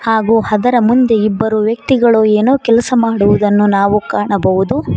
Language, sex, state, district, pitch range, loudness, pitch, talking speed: Kannada, female, Karnataka, Koppal, 205-235 Hz, -12 LUFS, 220 Hz, 120 wpm